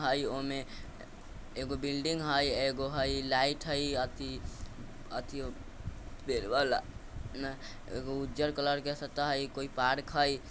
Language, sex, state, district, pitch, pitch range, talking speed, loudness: Bajjika, male, Bihar, Vaishali, 135 Hz, 125-140 Hz, 130 wpm, -34 LUFS